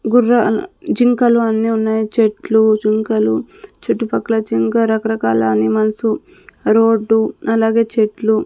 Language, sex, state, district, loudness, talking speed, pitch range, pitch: Telugu, female, Andhra Pradesh, Sri Satya Sai, -15 LUFS, 100 wpm, 215-230 Hz, 220 Hz